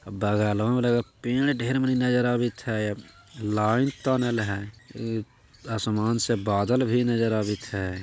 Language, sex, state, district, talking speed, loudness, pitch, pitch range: Magahi, male, Bihar, Jahanabad, 150 wpm, -26 LUFS, 115 Hz, 105-125 Hz